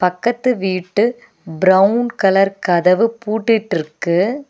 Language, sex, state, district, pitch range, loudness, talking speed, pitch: Tamil, female, Tamil Nadu, Nilgiris, 180-230 Hz, -16 LUFS, 80 wpm, 195 Hz